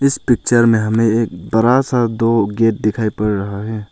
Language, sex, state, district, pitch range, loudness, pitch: Hindi, male, Arunachal Pradesh, Longding, 105-115 Hz, -16 LUFS, 115 Hz